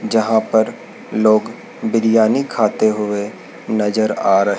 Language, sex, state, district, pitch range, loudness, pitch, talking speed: Hindi, male, Madhya Pradesh, Dhar, 105-110 Hz, -17 LUFS, 110 Hz, 120 wpm